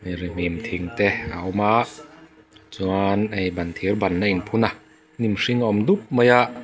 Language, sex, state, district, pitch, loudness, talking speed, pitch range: Mizo, male, Mizoram, Aizawl, 105 Hz, -22 LUFS, 170 wpm, 95-120 Hz